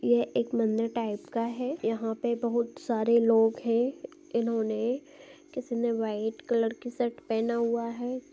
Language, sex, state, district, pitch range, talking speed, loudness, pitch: Hindi, female, Chhattisgarh, Balrampur, 225-245 Hz, 160 wpm, -29 LUFS, 235 Hz